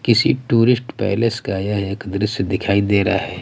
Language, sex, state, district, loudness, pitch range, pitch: Hindi, male, Bihar, Patna, -18 LUFS, 100-115 Hz, 100 Hz